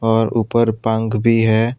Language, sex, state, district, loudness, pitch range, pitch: Hindi, male, Tripura, West Tripura, -17 LUFS, 110-115 Hz, 115 Hz